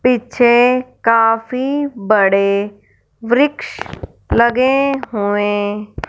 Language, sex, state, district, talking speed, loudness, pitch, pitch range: Hindi, female, Punjab, Fazilka, 60 wpm, -15 LUFS, 235 Hz, 205-255 Hz